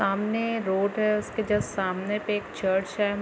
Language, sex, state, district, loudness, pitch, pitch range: Hindi, female, Chhattisgarh, Bilaspur, -27 LUFS, 205 Hz, 195-210 Hz